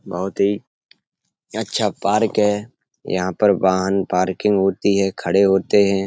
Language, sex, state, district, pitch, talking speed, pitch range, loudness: Hindi, male, Uttar Pradesh, Etah, 100 Hz, 140 wpm, 95-100 Hz, -19 LUFS